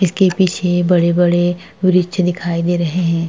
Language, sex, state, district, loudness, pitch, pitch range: Hindi, female, Uttar Pradesh, Jalaun, -15 LUFS, 175 Hz, 170-180 Hz